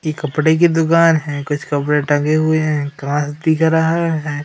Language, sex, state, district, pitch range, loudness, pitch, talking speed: Hindi, female, Madhya Pradesh, Umaria, 145-160 Hz, -16 LUFS, 155 Hz, 190 wpm